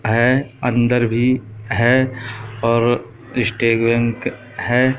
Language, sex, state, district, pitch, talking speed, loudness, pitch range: Hindi, male, Madhya Pradesh, Katni, 120 Hz, 70 wpm, -18 LUFS, 115-125 Hz